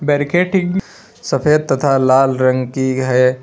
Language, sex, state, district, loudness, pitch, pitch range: Hindi, male, Uttar Pradesh, Lalitpur, -15 LUFS, 135 Hz, 130-150 Hz